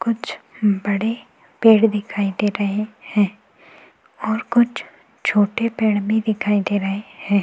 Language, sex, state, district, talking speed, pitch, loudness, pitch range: Hindi, female, Goa, North and South Goa, 130 wpm, 210 Hz, -20 LUFS, 205-225 Hz